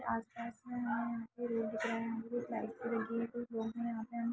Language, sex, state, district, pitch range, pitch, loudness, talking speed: Hindi, female, Jharkhand, Sahebganj, 225-235 Hz, 230 Hz, -40 LUFS, 125 wpm